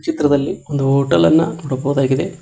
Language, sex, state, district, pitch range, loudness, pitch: Kannada, male, Karnataka, Koppal, 135-160 Hz, -16 LUFS, 140 Hz